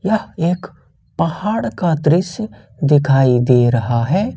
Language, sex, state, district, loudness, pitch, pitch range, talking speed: Hindi, male, Jharkhand, Ranchi, -16 LUFS, 155 Hz, 130-185 Hz, 125 wpm